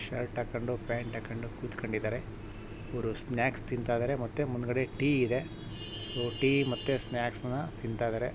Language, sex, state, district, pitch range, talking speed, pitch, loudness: Kannada, male, Karnataka, Shimoga, 110-125 Hz, 135 wpm, 120 Hz, -33 LUFS